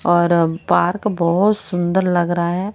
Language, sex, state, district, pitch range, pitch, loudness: Hindi, female, Haryana, Rohtak, 170-190 Hz, 175 Hz, -17 LUFS